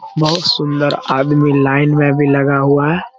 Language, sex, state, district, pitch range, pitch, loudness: Hindi, male, Bihar, Jamui, 140-155 Hz, 145 Hz, -13 LUFS